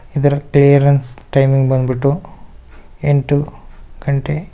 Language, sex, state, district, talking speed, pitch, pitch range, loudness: Kannada, male, Karnataka, Bangalore, 80 wpm, 140 Hz, 115-145 Hz, -15 LUFS